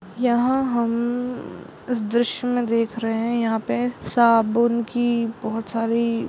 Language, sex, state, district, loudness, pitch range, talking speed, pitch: Hindi, female, Maharashtra, Dhule, -22 LUFS, 225-240 Hz, 135 wpm, 235 Hz